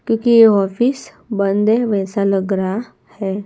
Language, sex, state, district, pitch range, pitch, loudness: Hindi, female, Gujarat, Gandhinagar, 195-230 Hz, 205 Hz, -16 LUFS